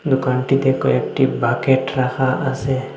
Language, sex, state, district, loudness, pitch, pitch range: Bengali, male, Assam, Hailakandi, -18 LUFS, 130 Hz, 130-135 Hz